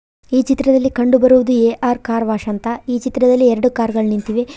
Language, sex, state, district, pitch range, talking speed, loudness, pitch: Kannada, female, Karnataka, Koppal, 230-255 Hz, 170 wpm, -15 LUFS, 245 Hz